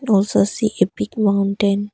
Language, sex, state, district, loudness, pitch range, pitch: English, female, Arunachal Pradesh, Longding, -18 LUFS, 200-215 Hz, 205 Hz